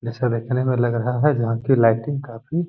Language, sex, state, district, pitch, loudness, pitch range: Hindi, male, Bihar, Gaya, 125 Hz, -20 LUFS, 115-135 Hz